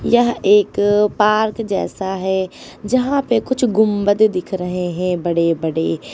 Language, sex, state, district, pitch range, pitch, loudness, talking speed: Hindi, female, Uttar Pradesh, Lucknow, 180-220 Hz, 205 Hz, -17 LUFS, 135 wpm